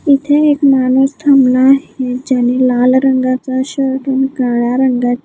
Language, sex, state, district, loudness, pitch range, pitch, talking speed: Marathi, female, Maharashtra, Gondia, -12 LUFS, 255-270 Hz, 260 Hz, 135 wpm